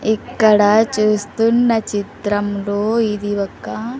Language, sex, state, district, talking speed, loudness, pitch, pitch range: Telugu, female, Andhra Pradesh, Sri Satya Sai, 75 wpm, -17 LUFS, 215 Hz, 205-225 Hz